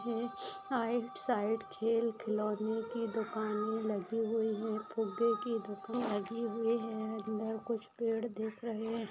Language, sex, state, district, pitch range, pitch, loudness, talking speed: Hindi, female, Maharashtra, Aurangabad, 215-235 Hz, 225 Hz, -36 LUFS, 140 wpm